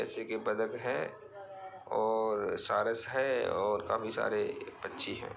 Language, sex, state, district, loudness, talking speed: Bhojpuri, male, Bihar, Saran, -34 LUFS, 145 wpm